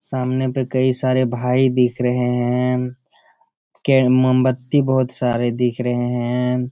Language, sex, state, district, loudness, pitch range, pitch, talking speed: Hindi, male, Bihar, Jamui, -18 LUFS, 125-130 Hz, 125 Hz, 145 wpm